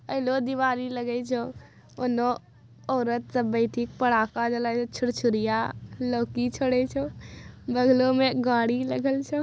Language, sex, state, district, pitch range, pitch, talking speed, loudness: Maithili, female, Bihar, Bhagalpur, 235-255 Hz, 245 Hz, 125 wpm, -26 LUFS